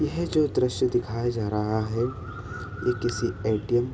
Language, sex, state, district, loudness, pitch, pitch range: Hindi, male, Uttar Pradesh, Budaun, -27 LUFS, 120 Hz, 110-125 Hz